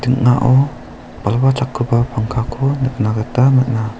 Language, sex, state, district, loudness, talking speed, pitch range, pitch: Garo, male, Meghalaya, South Garo Hills, -16 LUFS, 105 wpm, 110-130 Hz, 125 Hz